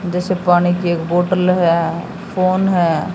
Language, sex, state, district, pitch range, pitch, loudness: Hindi, female, Haryana, Jhajjar, 170-185 Hz, 180 Hz, -16 LUFS